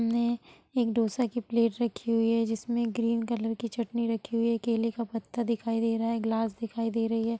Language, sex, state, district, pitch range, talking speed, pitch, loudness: Hindi, female, Bihar, Sitamarhi, 225-235 Hz, 225 wpm, 230 Hz, -29 LUFS